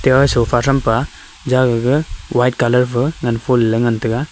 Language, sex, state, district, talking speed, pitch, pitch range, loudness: Wancho, male, Arunachal Pradesh, Longding, 155 wpm, 125 Hz, 120-135 Hz, -16 LUFS